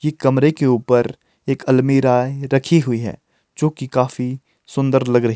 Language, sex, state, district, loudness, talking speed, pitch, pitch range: Hindi, male, Himachal Pradesh, Shimla, -18 LUFS, 170 wpm, 130 Hz, 125-140 Hz